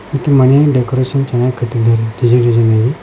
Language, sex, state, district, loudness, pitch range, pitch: Kannada, male, Karnataka, Koppal, -12 LUFS, 115-135 Hz, 125 Hz